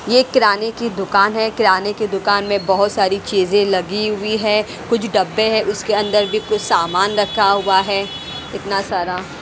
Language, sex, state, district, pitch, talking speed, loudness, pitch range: Hindi, female, Haryana, Rohtak, 205 Hz, 185 wpm, -17 LUFS, 195-215 Hz